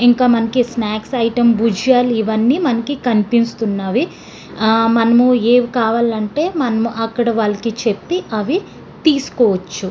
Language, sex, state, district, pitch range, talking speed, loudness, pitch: Telugu, female, Andhra Pradesh, Srikakulam, 220-245 Hz, 110 wpm, -16 LUFS, 230 Hz